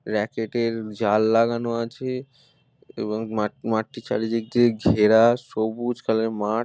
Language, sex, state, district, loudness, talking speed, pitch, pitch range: Bengali, male, West Bengal, Malda, -23 LUFS, 145 wpm, 115 Hz, 110-120 Hz